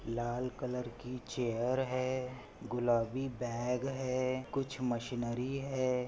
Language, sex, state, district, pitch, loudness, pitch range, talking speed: Hindi, male, Maharashtra, Chandrapur, 125 Hz, -36 LUFS, 120-130 Hz, 110 wpm